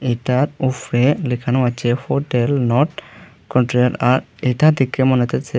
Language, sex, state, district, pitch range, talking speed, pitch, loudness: Bengali, male, Tripura, Unakoti, 120-140 Hz, 130 wpm, 130 Hz, -18 LUFS